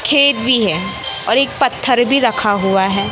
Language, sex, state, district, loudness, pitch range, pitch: Hindi, male, Madhya Pradesh, Katni, -14 LUFS, 200-255 Hz, 220 Hz